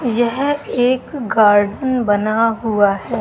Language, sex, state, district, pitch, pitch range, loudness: Hindi, female, Madhya Pradesh, Katni, 230 Hz, 210-250 Hz, -16 LUFS